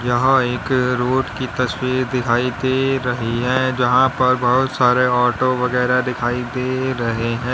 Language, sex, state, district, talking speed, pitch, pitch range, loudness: Hindi, male, Uttar Pradesh, Lalitpur, 150 wpm, 125 Hz, 125-130 Hz, -18 LUFS